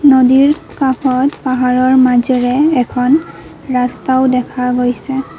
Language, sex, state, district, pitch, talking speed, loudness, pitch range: Assamese, female, Assam, Kamrup Metropolitan, 260 Hz, 90 wpm, -13 LUFS, 250-270 Hz